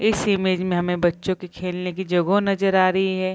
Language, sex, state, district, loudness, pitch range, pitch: Hindi, female, Bihar, Bhagalpur, -21 LUFS, 180-190 Hz, 185 Hz